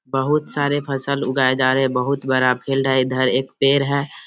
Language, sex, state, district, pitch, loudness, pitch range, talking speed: Hindi, male, Bihar, Samastipur, 135 Hz, -19 LUFS, 130-140 Hz, 210 wpm